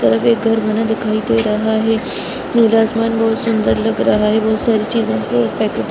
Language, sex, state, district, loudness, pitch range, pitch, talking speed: Hindi, female, Rajasthan, Churu, -15 LUFS, 215-225 Hz, 220 Hz, 225 wpm